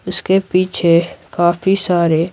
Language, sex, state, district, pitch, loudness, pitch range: Hindi, female, Bihar, Patna, 175 Hz, -15 LUFS, 170-185 Hz